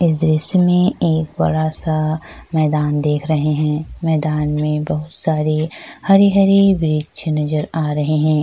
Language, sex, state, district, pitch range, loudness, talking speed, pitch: Hindi, female, Chhattisgarh, Sukma, 150-165 Hz, -17 LUFS, 130 wpm, 155 Hz